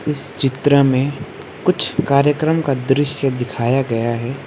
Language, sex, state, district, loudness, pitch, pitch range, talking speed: Hindi, male, West Bengal, Alipurduar, -17 LUFS, 140 Hz, 130-145 Hz, 135 wpm